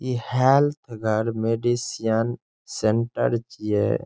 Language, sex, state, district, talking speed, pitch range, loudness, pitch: Maithili, male, Bihar, Saharsa, 75 wpm, 110-120 Hz, -23 LUFS, 115 Hz